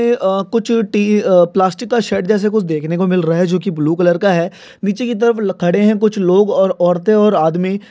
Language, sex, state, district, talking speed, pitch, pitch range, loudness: Hindi, male, Maharashtra, Nagpur, 225 wpm, 195 Hz, 180-215 Hz, -14 LUFS